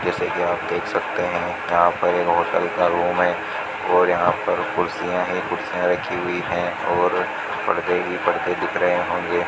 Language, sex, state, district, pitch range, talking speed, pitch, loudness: Hindi, male, Rajasthan, Bikaner, 85-90 Hz, 190 wpm, 90 Hz, -21 LUFS